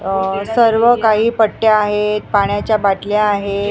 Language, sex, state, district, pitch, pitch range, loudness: Marathi, female, Maharashtra, Mumbai Suburban, 210 Hz, 200-220 Hz, -15 LUFS